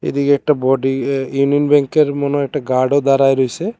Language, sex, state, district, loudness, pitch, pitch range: Bengali, male, Tripura, West Tripura, -15 LUFS, 140 Hz, 135-145 Hz